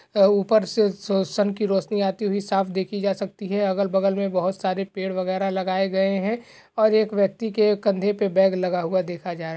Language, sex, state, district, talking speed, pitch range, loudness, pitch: Hindi, male, Uttar Pradesh, Jalaun, 220 wpm, 190-205 Hz, -23 LUFS, 195 Hz